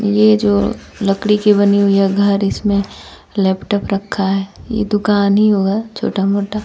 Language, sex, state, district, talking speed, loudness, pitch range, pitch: Hindi, female, Bihar, West Champaran, 160 wpm, -15 LUFS, 200-210 Hz, 200 Hz